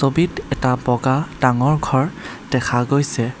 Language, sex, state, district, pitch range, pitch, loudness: Assamese, male, Assam, Kamrup Metropolitan, 125-145 Hz, 130 Hz, -19 LUFS